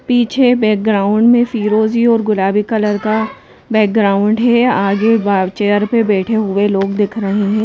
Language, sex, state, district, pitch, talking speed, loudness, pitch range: Hindi, female, Madhya Pradesh, Bhopal, 215 Hz, 155 wpm, -13 LUFS, 205-230 Hz